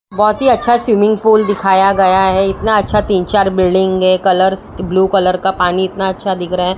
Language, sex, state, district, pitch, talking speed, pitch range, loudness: Hindi, female, Maharashtra, Mumbai Suburban, 190 Hz, 205 wpm, 185-210 Hz, -13 LUFS